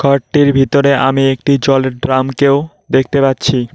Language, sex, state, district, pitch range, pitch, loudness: Bengali, male, West Bengal, Cooch Behar, 130-140 Hz, 135 Hz, -12 LUFS